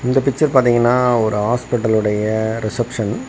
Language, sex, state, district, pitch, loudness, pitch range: Tamil, male, Tamil Nadu, Kanyakumari, 120 Hz, -17 LUFS, 110-125 Hz